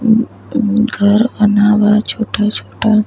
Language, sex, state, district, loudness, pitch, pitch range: Bhojpuri, female, Uttar Pradesh, Deoria, -13 LUFS, 215 Hz, 210-220 Hz